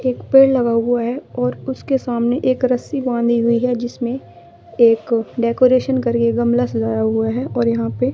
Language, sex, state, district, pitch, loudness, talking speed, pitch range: Hindi, female, Madhya Pradesh, Katni, 240 Hz, -17 LUFS, 175 wpm, 225-255 Hz